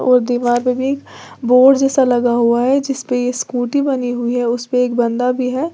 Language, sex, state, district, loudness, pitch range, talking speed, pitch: Hindi, female, Uttar Pradesh, Lalitpur, -16 LUFS, 245-265 Hz, 210 wpm, 250 Hz